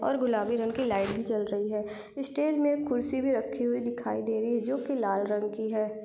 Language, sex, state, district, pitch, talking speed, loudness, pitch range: Hindi, female, Maharashtra, Chandrapur, 230 Hz, 260 wpm, -30 LUFS, 210-260 Hz